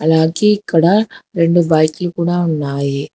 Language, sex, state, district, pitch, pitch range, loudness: Telugu, female, Telangana, Hyderabad, 165 Hz, 155-175 Hz, -15 LUFS